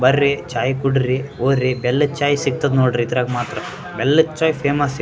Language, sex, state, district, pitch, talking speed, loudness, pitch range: Kannada, male, Karnataka, Raichur, 135 Hz, 165 wpm, -18 LUFS, 125-145 Hz